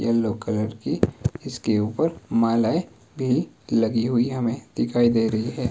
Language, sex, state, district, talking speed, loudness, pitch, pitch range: Hindi, male, Himachal Pradesh, Shimla, 160 wpm, -23 LUFS, 115 Hz, 110-120 Hz